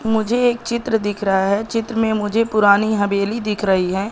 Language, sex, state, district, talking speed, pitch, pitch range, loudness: Hindi, male, Madhya Pradesh, Katni, 205 wpm, 215 Hz, 200-225 Hz, -18 LUFS